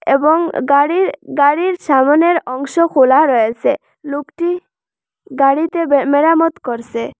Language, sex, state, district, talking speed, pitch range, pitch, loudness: Bengali, female, Assam, Hailakandi, 100 wpm, 270-330 Hz, 290 Hz, -14 LUFS